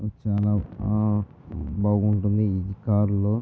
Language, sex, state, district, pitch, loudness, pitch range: Telugu, male, Andhra Pradesh, Visakhapatnam, 105 Hz, -24 LUFS, 100-105 Hz